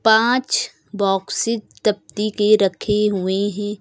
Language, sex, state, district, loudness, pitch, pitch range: Hindi, female, Uttar Pradesh, Lucknow, -19 LUFS, 210 Hz, 200-215 Hz